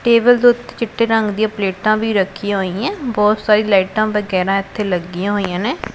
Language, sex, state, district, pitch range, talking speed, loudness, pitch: Punjabi, female, Punjab, Pathankot, 195-225 Hz, 180 wpm, -16 LUFS, 210 Hz